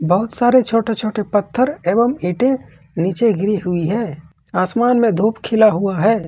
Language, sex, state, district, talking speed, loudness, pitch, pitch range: Hindi, male, Jharkhand, Ranchi, 165 wpm, -17 LUFS, 215 Hz, 180-235 Hz